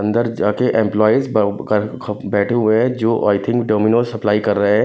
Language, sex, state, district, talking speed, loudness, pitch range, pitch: Hindi, male, Punjab, Kapurthala, 235 wpm, -17 LUFS, 105-115 Hz, 110 Hz